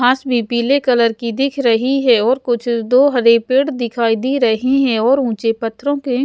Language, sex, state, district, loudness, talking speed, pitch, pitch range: Hindi, female, Haryana, Jhajjar, -15 LUFS, 210 wpm, 245 Hz, 230-265 Hz